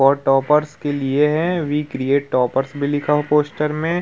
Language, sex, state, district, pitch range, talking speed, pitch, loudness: Hindi, male, Uttar Pradesh, Muzaffarnagar, 135-150 Hz, 225 wpm, 145 Hz, -19 LUFS